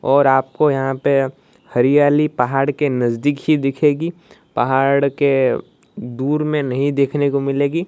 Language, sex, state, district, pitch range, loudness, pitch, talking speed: Hindi, female, Odisha, Malkangiri, 135-145 Hz, -17 LUFS, 140 Hz, 135 wpm